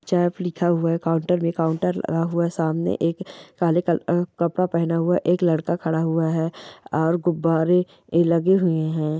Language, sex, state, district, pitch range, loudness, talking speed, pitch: Hindi, female, Chhattisgarh, Bilaspur, 165-175 Hz, -22 LUFS, 190 wpm, 170 Hz